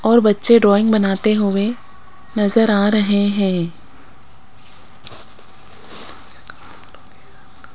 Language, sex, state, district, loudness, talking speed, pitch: Hindi, female, Rajasthan, Jaipur, -16 LUFS, 70 wpm, 200 Hz